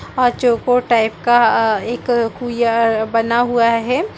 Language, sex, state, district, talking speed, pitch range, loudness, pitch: Hindi, female, Chhattisgarh, Balrampur, 145 wpm, 230-245 Hz, -16 LUFS, 235 Hz